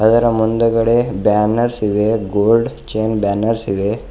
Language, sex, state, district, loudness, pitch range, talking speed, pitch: Kannada, male, Karnataka, Bidar, -16 LUFS, 105-115 Hz, 100 wpm, 110 Hz